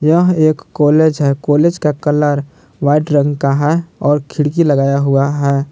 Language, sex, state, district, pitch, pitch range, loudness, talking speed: Hindi, male, Jharkhand, Palamu, 145 Hz, 140-155 Hz, -14 LUFS, 170 wpm